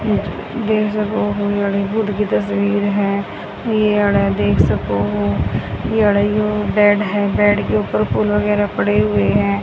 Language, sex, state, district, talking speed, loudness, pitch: Hindi, female, Haryana, Charkhi Dadri, 130 wpm, -17 LUFS, 200 Hz